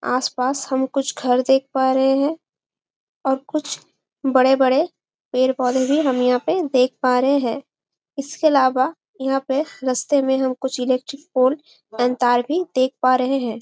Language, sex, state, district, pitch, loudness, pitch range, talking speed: Hindi, female, Chhattisgarh, Bastar, 265 Hz, -19 LUFS, 255-275 Hz, 170 wpm